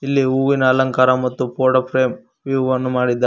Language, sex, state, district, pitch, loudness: Kannada, male, Karnataka, Koppal, 130 Hz, -17 LUFS